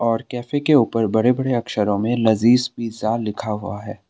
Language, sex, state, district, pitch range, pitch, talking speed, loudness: Hindi, male, Assam, Sonitpur, 110-125 Hz, 115 Hz, 190 wpm, -20 LUFS